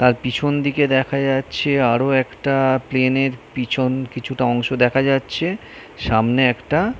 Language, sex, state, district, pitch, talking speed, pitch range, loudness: Bengali, male, West Bengal, North 24 Parganas, 130 Hz, 145 wpm, 125-135 Hz, -19 LUFS